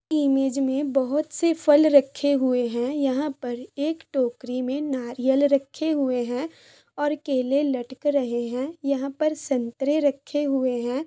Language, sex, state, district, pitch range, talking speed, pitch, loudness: Hindi, female, Chhattisgarh, Bilaspur, 255-290 Hz, 150 wpm, 275 Hz, -24 LUFS